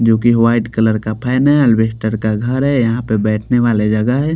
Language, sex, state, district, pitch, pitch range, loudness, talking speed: Hindi, male, Bihar, Patna, 115 Hz, 110-125 Hz, -14 LUFS, 85 wpm